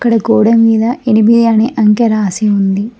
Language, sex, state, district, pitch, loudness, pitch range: Telugu, female, Telangana, Mahabubabad, 225 Hz, -10 LUFS, 215-230 Hz